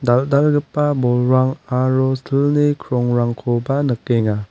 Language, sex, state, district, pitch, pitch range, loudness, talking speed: Garo, male, Meghalaya, West Garo Hills, 130 Hz, 120-140 Hz, -18 LUFS, 80 wpm